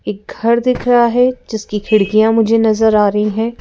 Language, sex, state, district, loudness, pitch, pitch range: Hindi, female, Madhya Pradesh, Bhopal, -13 LUFS, 220 Hz, 210-235 Hz